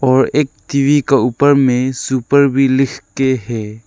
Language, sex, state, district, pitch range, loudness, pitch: Hindi, male, Arunachal Pradesh, Lower Dibang Valley, 125-140 Hz, -14 LUFS, 135 Hz